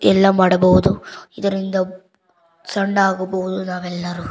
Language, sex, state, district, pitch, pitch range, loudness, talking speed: Kannada, female, Karnataka, Bangalore, 185 Hz, 180-195 Hz, -18 LUFS, 85 wpm